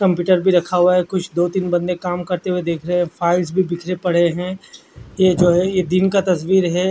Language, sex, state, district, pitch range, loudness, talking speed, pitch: Hindi, male, Odisha, Khordha, 175-185 Hz, -18 LUFS, 235 wpm, 180 Hz